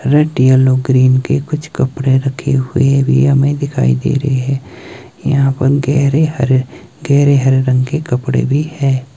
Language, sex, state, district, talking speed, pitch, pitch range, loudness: Hindi, male, Himachal Pradesh, Shimla, 65 wpm, 135 Hz, 130-140 Hz, -13 LUFS